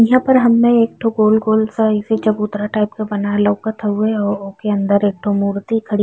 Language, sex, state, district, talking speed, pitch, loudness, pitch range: Bhojpuri, female, Uttar Pradesh, Ghazipur, 190 wpm, 215 Hz, -16 LUFS, 205-220 Hz